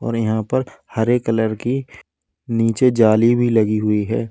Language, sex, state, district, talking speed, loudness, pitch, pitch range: Hindi, male, Uttar Pradesh, Lalitpur, 165 wpm, -18 LUFS, 115 Hz, 110-120 Hz